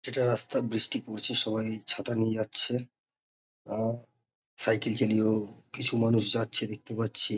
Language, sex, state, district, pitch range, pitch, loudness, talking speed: Bengali, male, West Bengal, North 24 Parganas, 110-120 Hz, 115 Hz, -27 LUFS, 130 wpm